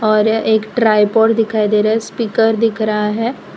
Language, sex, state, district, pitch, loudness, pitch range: Hindi, female, Gujarat, Valsad, 220 Hz, -15 LUFS, 215-225 Hz